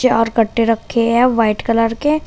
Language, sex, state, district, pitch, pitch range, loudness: Hindi, female, Uttar Pradesh, Shamli, 230 Hz, 225-250 Hz, -15 LUFS